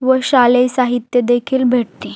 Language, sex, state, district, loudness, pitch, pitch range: Marathi, female, Maharashtra, Aurangabad, -14 LUFS, 250 Hz, 245-255 Hz